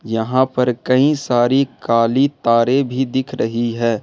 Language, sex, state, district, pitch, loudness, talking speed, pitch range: Hindi, male, Jharkhand, Ranchi, 125 Hz, -17 LUFS, 150 wpm, 115-130 Hz